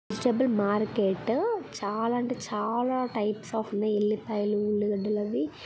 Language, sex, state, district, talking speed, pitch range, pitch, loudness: Telugu, female, Telangana, Karimnagar, 140 wpm, 210-235 Hz, 215 Hz, -28 LUFS